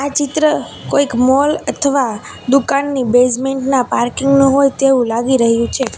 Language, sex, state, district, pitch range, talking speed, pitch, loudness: Gujarati, female, Gujarat, Valsad, 250-280 Hz, 140 wpm, 270 Hz, -14 LUFS